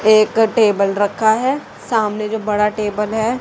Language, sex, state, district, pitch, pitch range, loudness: Hindi, female, Haryana, Rohtak, 215 Hz, 210-225 Hz, -17 LUFS